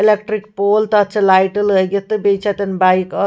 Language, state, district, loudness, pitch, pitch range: Kashmiri, Punjab, Kapurthala, -15 LUFS, 200 Hz, 195-210 Hz